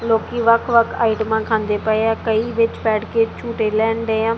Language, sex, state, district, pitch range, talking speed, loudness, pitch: Punjabi, female, Punjab, Kapurthala, 220-230 Hz, 205 wpm, -18 LUFS, 225 Hz